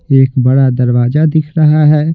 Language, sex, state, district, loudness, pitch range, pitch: Hindi, male, Bihar, Patna, -10 LUFS, 130-155 Hz, 150 Hz